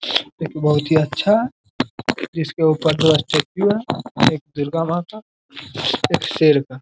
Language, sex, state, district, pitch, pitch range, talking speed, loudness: Hindi, male, Bihar, Jamui, 160 Hz, 150-185 Hz, 140 wpm, -19 LUFS